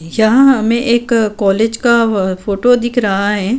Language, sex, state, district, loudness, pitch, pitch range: Hindi, female, Uttar Pradesh, Budaun, -13 LUFS, 225 Hz, 200-235 Hz